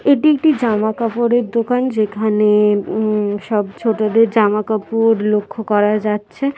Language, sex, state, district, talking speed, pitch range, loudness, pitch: Bengali, female, West Bengal, Jhargram, 155 wpm, 210-235 Hz, -16 LUFS, 220 Hz